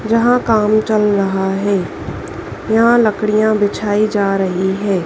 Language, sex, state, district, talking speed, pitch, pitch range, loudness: Hindi, female, Madhya Pradesh, Dhar, 130 wpm, 210 Hz, 195-220 Hz, -15 LUFS